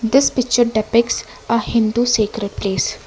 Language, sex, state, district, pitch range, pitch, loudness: English, female, Karnataka, Bangalore, 215-240 Hz, 230 Hz, -17 LUFS